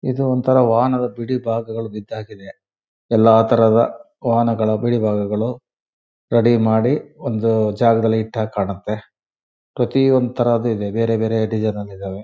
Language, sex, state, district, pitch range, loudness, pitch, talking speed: Kannada, male, Karnataka, Shimoga, 110-120 Hz, -18 LUFS, 115 Hz, 120 wpm